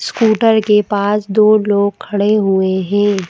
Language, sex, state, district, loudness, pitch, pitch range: Hindi, female, Madhya Pradesh, Bhopal, -13 LUFS, 205 Hz, 200-215 Hz